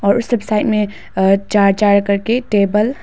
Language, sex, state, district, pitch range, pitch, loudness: Hindi, female, Arunachal Pradesh, Papum Pare, 200-215 Hz, 205 Hz, -15 LUFS